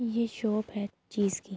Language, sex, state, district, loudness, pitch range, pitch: Urdu, female, Andhra Pradesh, Anantapur, -32 LUFS, 200-230 Hz, 215 Hz